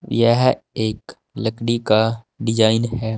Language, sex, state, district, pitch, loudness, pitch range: Hindi, male, Uttar Pradesh, Saharanpur, 115 Hz, -19 LUFS, 110-115 Hz